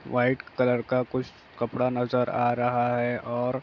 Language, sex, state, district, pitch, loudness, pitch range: Hindi, male, Bihar, Jahanabad, 125 Hz, -26 LUFS, 120-125 Hz